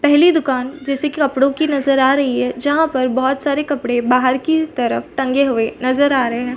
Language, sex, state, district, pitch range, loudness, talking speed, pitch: Hindi, female, Chhattisgarh, Bastar, 255-290 Hz, -16 LUFS, 220 wpm, 270 Hz